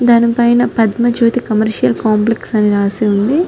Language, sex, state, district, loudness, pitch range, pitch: Telugu, female, Telangana, Nalgonda, -13 LUFS, 215-240 Hz, 230 Hz